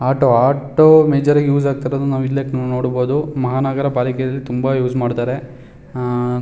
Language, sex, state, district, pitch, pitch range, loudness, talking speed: Kannada, male, Karnataka, Shimoga, 130 Hz, 125-140 Hz, -16 LUFS, 120 wpm